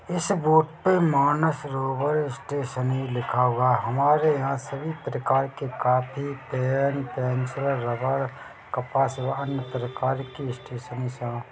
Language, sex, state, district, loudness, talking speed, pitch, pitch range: Hindi, male, Chhattisgarh, Bilaspur, -25 LUFS, 125 wpm, 135 Hz, 125-140 Hz